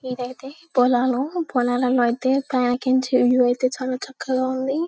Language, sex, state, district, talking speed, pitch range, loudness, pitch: Telugu, male, Telangana, Karimnagar, 110 wpm, 250-265 Hz, -21 LUFS, 255 Hz